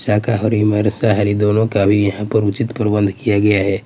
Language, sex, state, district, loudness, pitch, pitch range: Hindi, male, Bihar, Patna, -16 LUFS, 105 Hz, 100-110 Hz